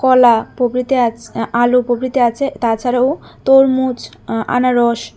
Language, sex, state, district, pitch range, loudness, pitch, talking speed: Bengali, female, Tripura, West Tripura, 235-260 Hz, -15 LUFS, 245 Hz, 105 wpm